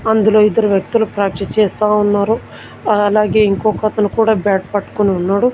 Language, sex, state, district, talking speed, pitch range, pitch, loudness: Telugu, male, Telangana, Komaram Bheem, 140 wpm, 205-215 Hz, 210 Hz, -14 LUFS